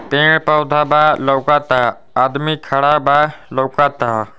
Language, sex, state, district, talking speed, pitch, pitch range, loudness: Bhojpuri, male, Uttar Pradesh, Ghazipur, 110 wpm, 145 Hz, 130-150 Hz, -14 LUFS